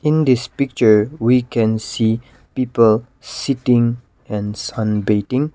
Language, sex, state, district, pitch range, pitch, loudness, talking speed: English, male, Nagaland, Kohima, 110-130 Hz, 120 Hz, -17 LUFS, 120 wpm